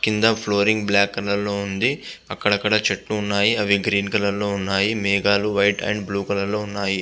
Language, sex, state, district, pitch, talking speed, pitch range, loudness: Telugu, male, Andhra Pradesh, Visakhapatnam, 100 Hz, 170 wpm, 100-105 Hz, -20 LUFS